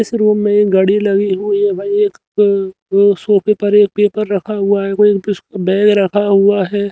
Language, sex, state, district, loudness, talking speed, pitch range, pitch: Hindi, male, Haryana, Rohtak, -13 LUFS, 210 wpm, 195-210 Hz, 205 Hz